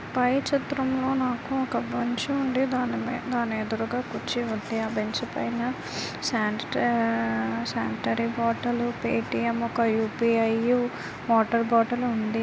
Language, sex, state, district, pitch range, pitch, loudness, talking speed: Telugu, female, Andhra Pradesh, Visakhapatnam, 220-245 Hz, 235 Hz, -26 LUFS, 75 wpm